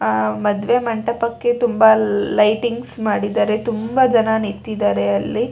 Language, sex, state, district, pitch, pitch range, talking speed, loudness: Kannada, female, Karnataka, Shimoga, 220 Hz, 205-235 Hz, 110 wpm, -18 LUFS